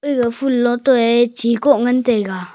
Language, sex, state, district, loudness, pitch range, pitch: Wancho, male, Arunachal Pradesh, Longding, -16 LUFS, 235-255 Hz, 240 Hz